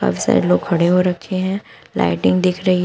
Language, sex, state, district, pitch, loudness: Hindi, female, Uttar Pradesh, Shamli, 170 Hz, -17 LUFS